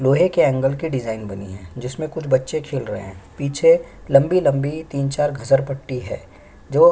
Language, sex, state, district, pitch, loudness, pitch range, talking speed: Hindi, male, Chhattisgarh, Sukma, 135 Hz, -20 LUFS, 125-155 Hz, 190 wpm